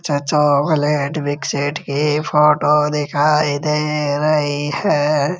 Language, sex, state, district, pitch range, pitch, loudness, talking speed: Hindi, male, Rajasthan, Jaipur, 145-150 Hz, 150 Hz, -17 LUFS, 100 wpm